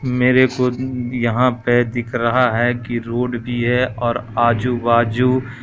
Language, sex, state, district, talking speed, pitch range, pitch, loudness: Hindi, male, Madhya Pradesh, Katni, 150 wpm, 120-125 Hz, 120 Hz, -18 LUFS